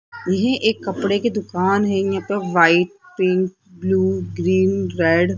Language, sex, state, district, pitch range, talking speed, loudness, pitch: Hindi, female, Rajasthan, Jaipur, 180-200 Hz, 155 wpm, -19 LUFS, 190 Hz